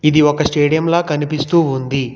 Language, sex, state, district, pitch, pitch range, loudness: Telugu, male, Telangana, Hyderabad, 150 Hz, 145-160 Hz, -15 LUFS